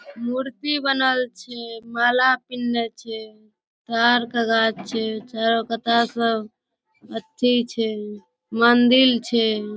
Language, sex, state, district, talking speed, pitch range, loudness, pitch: Maithili, female, Bihar, Darbhanga, 110 wpm, 225-245 Hz, -20 LUFS, 235 Hz